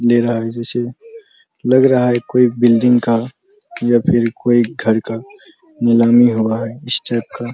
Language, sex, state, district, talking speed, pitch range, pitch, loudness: Hindi, male, Bihar, Araria, 175 wpm, 115-125 Hz, 120 Hz, -15 LUFS